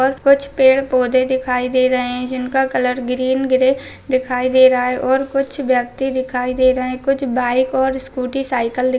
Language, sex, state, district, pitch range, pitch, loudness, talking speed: Hindi, female, Chhattisgarh, Raigarh, 250-265 Hz, 255 Hz, -17 LUFS, 185 wpm